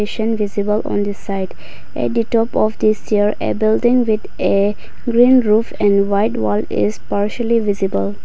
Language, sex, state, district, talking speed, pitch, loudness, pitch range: English, female, Nagaland, Kohima, 165 wpm, 210 Hz, -17 LUFS, 200-225 Hz